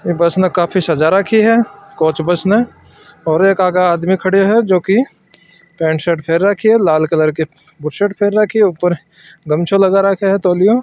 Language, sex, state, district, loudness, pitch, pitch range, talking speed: Marwari, male, Rajasthan, Nagaur, -14 LUFS, 185 Hz, 165-200 Hz, 200 wpm